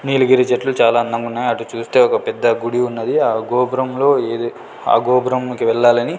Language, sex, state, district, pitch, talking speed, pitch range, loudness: Telugu, male, Andhra Pradesh, Sri Satya Sai, 125 Hz, 155 wpm, 115-130 Hz, -16 LUFS